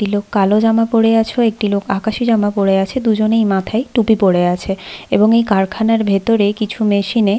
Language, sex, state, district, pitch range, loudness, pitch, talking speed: Bengali, female, West Bengal, Paschim Medinipur, 200-225 Hz, -15 LUFS, 215 Hz, 205 wpm